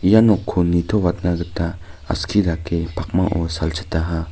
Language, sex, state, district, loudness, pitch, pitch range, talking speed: Garo, male, Meghalaya, North Garo Hills, -20 LUFS, 85 Hz, 85-95 Hz, 110 wpm